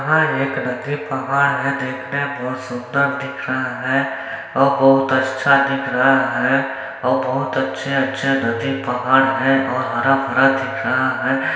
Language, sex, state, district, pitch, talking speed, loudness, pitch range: Hindi, male, Chhattisgarh, Balrampur, 135 Hz, 155 wpm, -18 LUFS, 130-140 Hz